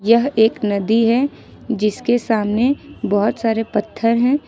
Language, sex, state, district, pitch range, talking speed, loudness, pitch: Hindi, female, Jharkhand, Ranchi, 215-245 Hz, 135 wpm, -18 LUFS, 230 Hz